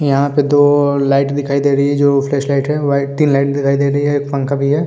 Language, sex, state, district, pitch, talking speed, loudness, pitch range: Hindi, male, Bihar, Vaishali, 140 Hz, 285 wpm, -14 LUFS, 140-145 Hz